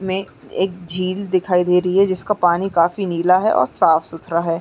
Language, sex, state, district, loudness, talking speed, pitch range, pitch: Hindi, female, Uttarakhand, Uttarkashi, -18 LUFS, 195 wpm, 170-190 Hz, 180 Hz